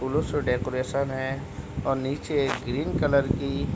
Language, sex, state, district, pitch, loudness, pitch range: Hindi, male, Uttar Pradesh, Deoria, 135 Hz, -27 LUFS, 130-145 Hz